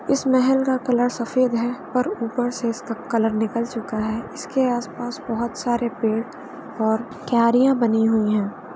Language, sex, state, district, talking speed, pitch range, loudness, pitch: Hindi, female, Uttar Pradesh, Varanasi, 165 wpm, 225-255 Hz, -22 LUFS, 235 Hz